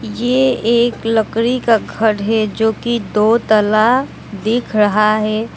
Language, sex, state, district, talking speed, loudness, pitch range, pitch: Hindi, female, West Bengal, Alipurduar, 140 wpm, -15 LUFS, 215-235 Hz, 220 Hz